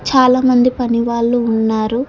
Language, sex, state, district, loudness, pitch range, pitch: Telugu, female, Telangana, Hyderabad, -14 LUFS, 230-255 Hz, 240 Hz